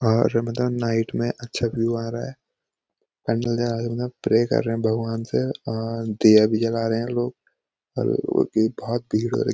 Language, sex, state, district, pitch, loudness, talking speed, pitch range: Hindi, male, Uttarakhand, Uttarkashi, 115 Hz, -23 LUFS, 205 wpm, 115-120 Hz